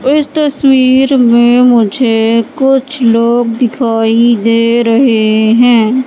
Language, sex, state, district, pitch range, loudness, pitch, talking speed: Hindi, female, Madhya Pradesh, Katni, 230-260 Hz, -9 LUFS, 240 Hz, 100 wpm